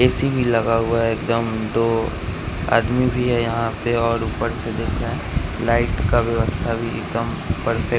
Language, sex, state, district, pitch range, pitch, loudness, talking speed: Hindi, male, Bihar, West Champaran, 110-115 Hz, 115 Hz, -21 LUFS, 180 wpm